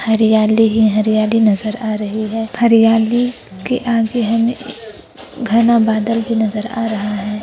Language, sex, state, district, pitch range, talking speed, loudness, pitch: Hindi, female, Chhattisgarh, Raigarh, 215-230 Hz, 155 wpm, -15 LUFS, 225 Hz